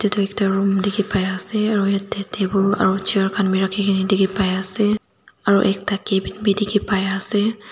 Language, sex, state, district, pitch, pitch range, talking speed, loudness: Nagamese, female, Nagaland, Dimapur, 195 Hz, 195-205 Hz, 180 wpm, -19 LUFS